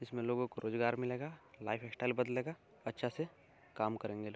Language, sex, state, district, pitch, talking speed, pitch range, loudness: Hindi, male, Bihar, East Champaran, 125 Hz, 165 wpm, 110-125 Hz, -40 LUFS